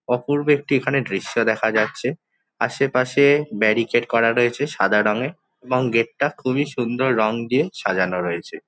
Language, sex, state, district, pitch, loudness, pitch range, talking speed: Bengali, male, West Bengal, Jhargram, 120 Hz, -20 LUFS, 110-135 Hz, 145 wpm